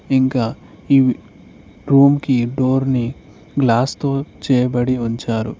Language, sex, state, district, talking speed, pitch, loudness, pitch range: Telugu, male, Telangana, Mahabubabad, 105 wpm, 130 Hz, -17 LUFS, 120-135 Hz